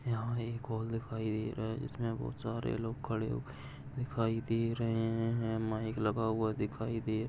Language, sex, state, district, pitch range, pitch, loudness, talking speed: Hindi, male, Maharashtra, Chandrapur, 110-115 Hz, 115 Hz, -36 LUFS, 190 wpm